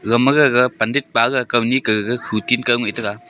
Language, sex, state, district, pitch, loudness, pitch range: Wancho, male, Arunachal Pradesh, Longding, 120 Hz, -17 LUFS, 110-125 Hz